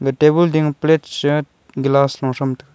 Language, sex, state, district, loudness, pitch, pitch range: Wancho, male, Arunachal Pradesh, Longding, -17 LUFS, 145 Hz, 135-150 Hz